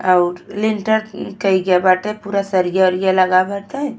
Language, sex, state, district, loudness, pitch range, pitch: Bhojpuri, female, Uttar Pradesh, Ghazipur, -17 LUFS, 185-210 Hz, 190 Hz